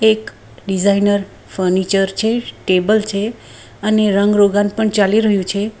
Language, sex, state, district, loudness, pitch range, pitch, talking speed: Gujarati, female, Gujarat, Valsad, -16 LUFS, 195-215 Hz, 205 Hz, 135 wpm